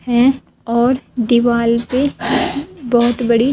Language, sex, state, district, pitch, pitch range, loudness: Hindi, female, Himachal Pradesh, Shimla, 240 Hz, 235-260 Hz, -16 LUFS